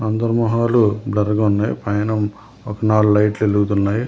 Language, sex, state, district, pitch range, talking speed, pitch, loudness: Telugu, male, Telangana, Hyderabad, 105-110 Hz, 160 wpm, 105 Hz, -18 LUFS